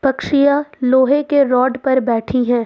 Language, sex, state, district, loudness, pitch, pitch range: Hindi, female, Jharkhand, Ranchi, -15 LUFS, 260 Hz, 250-280 Hz